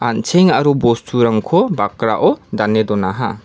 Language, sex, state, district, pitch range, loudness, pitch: Garo, male, Meghalaya, West Garo Hills, 110-140 Hz, -15 LUFS, 115 Hz